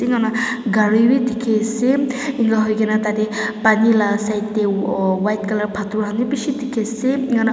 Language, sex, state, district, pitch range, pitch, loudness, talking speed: Nagamese, female, Nagaland, Dimapur, 215-245 Hz, 220 Hz, -18 LUFS, 190 wpm